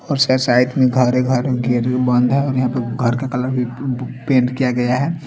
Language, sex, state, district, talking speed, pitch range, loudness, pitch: Hindi, male, Chandigarh, Chandigarh, 215 wpm, 125-130 Hz, -17 LUFS, 125 Hz